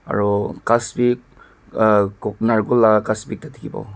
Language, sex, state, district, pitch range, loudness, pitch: Nagamese, male, Nagaland, Dimapur, 105-120 Hz, -18 LUFS, 110 Hz